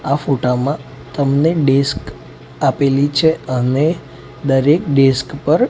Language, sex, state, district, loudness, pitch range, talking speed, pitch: Gujarati, male, Gujarat, Gandhinagar, -16 LUFS, 130-150 Hz, 105 wpm, 140 Hz